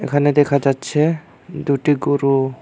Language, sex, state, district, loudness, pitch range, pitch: Bengali, male, Tripura, Unakoti, -17 LUFS, 140-150 Hz, 145 Hz